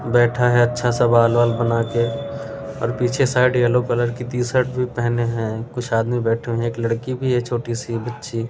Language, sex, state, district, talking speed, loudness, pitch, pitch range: Hindi, male, Delhi, New Delhi, 205 wpm, -20 LUFS, 120 Hz, 115-125 Hz